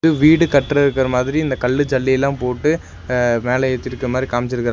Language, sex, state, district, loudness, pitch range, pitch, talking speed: Tamil, male, Tamil Nadu, Nilgiris, -17 LUFS, 125-145 Hz, 130 Hz, 180 wpm